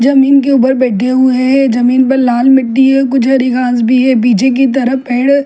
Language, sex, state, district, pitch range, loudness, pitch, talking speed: Hindi, female, Delhi, New Delhi, 250-265 Hz, -10 LUFS, 260 Hz, 220 wpm